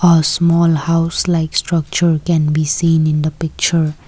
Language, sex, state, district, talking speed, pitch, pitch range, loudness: English, female, Assam, Kamrup Metropolitan, 160 wpm, 165 Hz, 155-170 Hz, -15 LUFS